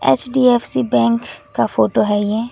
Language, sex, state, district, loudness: Hindi, female, West Bengal, Alipurduar, -16 LUFS